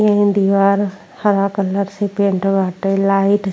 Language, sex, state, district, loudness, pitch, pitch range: Bhojpuri, female, Uttar Pradesh, Ghazipur, -16 LUFS, 200 Hz, 195-200 Hz